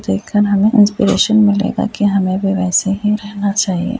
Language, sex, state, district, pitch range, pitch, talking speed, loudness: Hindi, female, Uttar Pradesh, Etah, 195-210 Hz, 205 Hz, 150 wpm, -14 LUFS